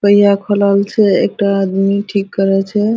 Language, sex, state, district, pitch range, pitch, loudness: Hindi, female, Bihar, Araria, 195-205 Hz, 200 Hz, -13 LUFS